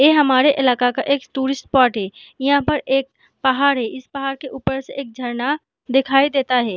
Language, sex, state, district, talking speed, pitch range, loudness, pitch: Hindi, female, Jharkhand, Sahebganj, 205 wpm, 255-280 Hz, -19 LUFS, 270 Hz